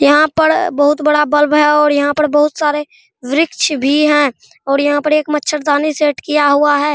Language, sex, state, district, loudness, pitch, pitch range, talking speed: Hindi, male, Bihar, Araria, -13 LUFS, 295 Hz, 290-300 Hz, 200 wpm